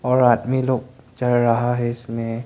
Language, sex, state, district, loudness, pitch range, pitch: Hindi, male, Arunachal Pradesh, Longding, -20 LUFS, 120-130 Hz, 120 Hz